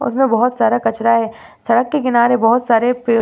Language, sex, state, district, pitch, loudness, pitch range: Hindi, female, Uttar Pradesh, Varanasi, 235 Hz, -15 LUFS, 230-245 Hz